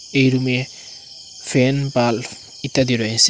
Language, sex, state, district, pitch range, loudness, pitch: Bengali, male, Assam, Hailakandi, 120-135 Hz, -18 LUFS, 130 Hz